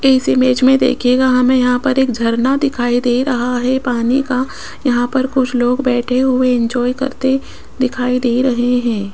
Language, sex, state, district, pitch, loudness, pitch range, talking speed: Hindi, female, Rajasthan, Jaipur, 255 Hz, -15 LUFS, 245-260 Hz, 175 wpm